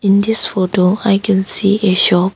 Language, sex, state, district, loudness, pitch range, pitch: English, female, Arunachal Pradesh, Longding, -13 LUFS, 185-205 Hz, 195 Hz